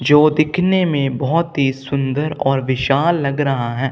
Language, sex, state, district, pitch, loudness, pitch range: Hindi, male, Punjab, Kapurthala, 140 Hz, -17 LUFS, 135-155 Hz